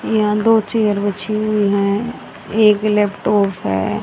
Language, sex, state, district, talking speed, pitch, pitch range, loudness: Hindi, female, Haryana, Rohtak, 135 wpm, 210 Hz, 200-215 Hz, -16 LUFS